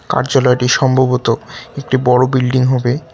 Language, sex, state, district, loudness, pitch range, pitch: Bengali, male, West Bengal, Cooch Behar, -14 LUFS, 125-130 Hz, 130 Hz